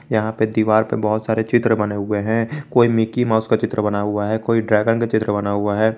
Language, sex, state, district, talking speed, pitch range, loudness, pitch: Hindi, male, Jharkhand, Garhwa, 250 wpm, 105-115 Hz, -19 LUFS, 110 Hz